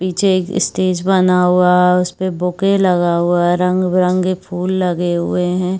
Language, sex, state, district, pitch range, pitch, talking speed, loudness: Chhattisgarhi, female, Chhattisgarh, Rajnandgaon, 180-185 Hz, 180 Hz, 155 wpm, -15 LUFS